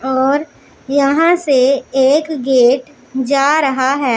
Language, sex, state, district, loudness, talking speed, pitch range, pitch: Hindi, female, Punjab, Pathankot, -14 LUFS, 115 wpm, 265-290 Hz, 275 Hz